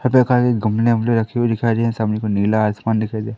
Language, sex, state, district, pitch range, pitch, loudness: Hindi, male, Madhya Pradesh, Katni, 110-120 Hz, 115 Hz, -18 LUFS